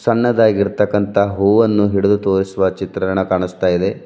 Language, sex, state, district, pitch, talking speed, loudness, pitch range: Kannada, male, Karnataka, Bidar, 100 Hz, 105 wpm, -16 LUFS, 95-105 Hz